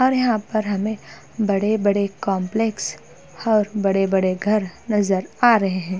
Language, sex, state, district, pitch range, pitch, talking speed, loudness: Hindi, female, Uttar Pradesh, Hamirpur, 195-220 Hz, 205 Hz, 130 wpm, -20 LUFS